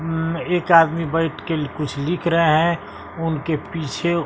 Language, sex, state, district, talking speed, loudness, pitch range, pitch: Hindi, male, Bihar, West Champaran, 155 wpm, -20 LUFS, 155-170 Hz, 165 Hz